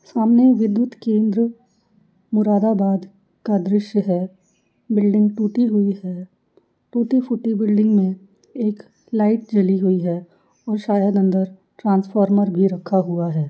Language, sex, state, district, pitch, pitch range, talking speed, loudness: Hindi, female, Uttar Pradesh, Jyotiba Phule Nagar, 205 Hz, 190-220 Hz, 120 wpm, -19 LUFS